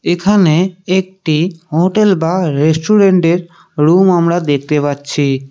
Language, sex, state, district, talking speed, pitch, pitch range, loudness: Bengali, male, West Bengal, Cooch Behar, 100 wpm, 170 Hz, 155-185 Hz, -13 LUFS